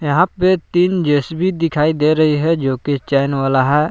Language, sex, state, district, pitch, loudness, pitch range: Hindi, male, Jharkhand, Palamu, 155 Hz, -16 LUFS, 145-170 Hz